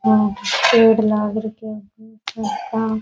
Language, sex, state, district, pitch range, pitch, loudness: Rajasthani, female, Rajasthan, Nagaur, 210-225 Hz, 220 Hz, -17 LUFS